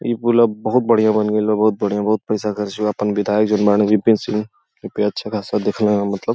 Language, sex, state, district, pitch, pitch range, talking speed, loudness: Bhojpuri, male, Uttar Pradesh, Gorakhpur, 105 Hz, 105-110 Hz, 245 wpm, -18 LUFS